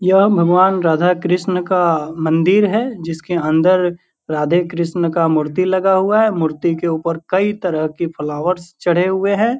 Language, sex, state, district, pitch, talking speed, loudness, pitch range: Hindi, male, Bihar, Purnia, 175 Hz, 160 wpm, -16 LUFS, 165-185 Hz